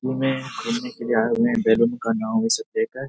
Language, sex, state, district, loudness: Hindi, male, Bihar, Saharsa, -22 LUFS